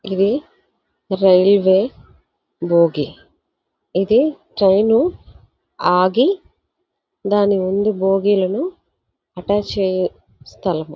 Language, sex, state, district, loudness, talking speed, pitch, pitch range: Telugu, female, Andhra Pradesh, Visakhapatnam, -17 LUFS, 65 wpm, 195 Hz, 185-215 Hz